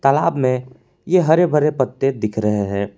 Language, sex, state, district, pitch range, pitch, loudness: Hindi, male, Jharkhand, Palamu, 110-150 Hz, 130 Hz, -18 LUFS